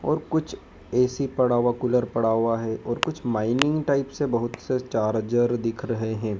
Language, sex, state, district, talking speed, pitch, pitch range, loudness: Hindi, male, Madhya Pradesh, Dhar, 190 wpm, 120 Hz, 115-135 Hz, -24 LUFS